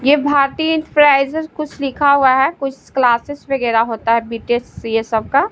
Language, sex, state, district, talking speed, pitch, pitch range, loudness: Hindi, female, Bihar, Patna, 165 wpm, 275 Hz, 235-290 Hz, -16 LUFS